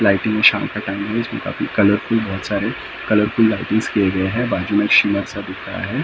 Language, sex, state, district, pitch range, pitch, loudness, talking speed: Hindi, male, Maharashtra, Mumbai Suburban, 100-110 Hz, 105 Hz, -18 LUFS, 140 wpm